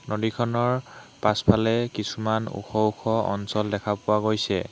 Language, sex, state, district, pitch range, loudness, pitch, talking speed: Assamese, male, Assam, Hailakandi, 105-115 Hz, -25 LUFS, 110 Hz, 115 wpm